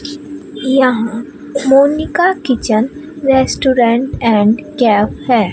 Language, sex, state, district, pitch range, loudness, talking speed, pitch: Hindi, female, Bihar, Katihar, 235-295 Hz, -13 LUFS, 75 wpm, 265 Hz